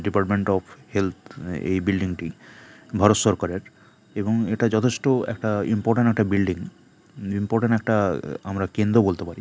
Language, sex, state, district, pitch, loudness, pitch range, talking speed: Bengali, male, West Bengal, Kolkata, 100 Hz, -23 LUFS, 95-110 Hz, 140 wpm